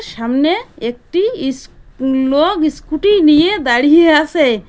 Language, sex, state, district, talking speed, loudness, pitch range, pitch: Bengali, female, West Bengal, Cooch Behar, 100 wpm, -13 LUFS, 265-335 Hz, 300 Hz